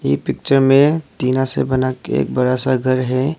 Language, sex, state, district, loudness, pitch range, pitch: Hindi, male, Arunachal Pradesh, Longding, -17 LUFS, 130-135 Hz, 130 Hz